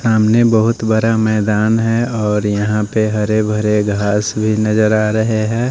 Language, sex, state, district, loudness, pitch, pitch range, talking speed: Hindi, male, Odisha, Nuapada, -15 LUFS, 110 Hz, 105-110 Hz, 170 wpm